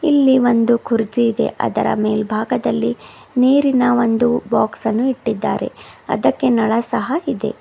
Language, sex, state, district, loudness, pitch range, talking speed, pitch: Kannada, female, Karnataka, Bidar, -17 LUFS, 225-255 Hz, 120 wpm, 240 Hz